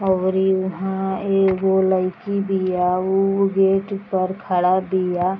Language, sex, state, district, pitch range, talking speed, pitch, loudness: Bhojpuri, female, Bihar, East Champaran, 185-195 Hz, 135 wpm, 190 Hz, -20 LUFS